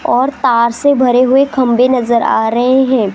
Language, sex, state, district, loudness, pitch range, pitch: Hindi, female, Rajasthan, Jaipur, -11 LUFS, 235-265 Hz, 250 Hz